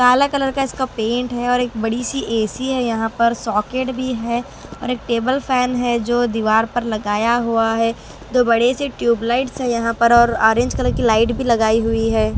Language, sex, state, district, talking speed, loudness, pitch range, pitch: Hindi, female, Bihar, Patna, 220 wpm, -18 LUFS, 225-250 Hz, 235 Hz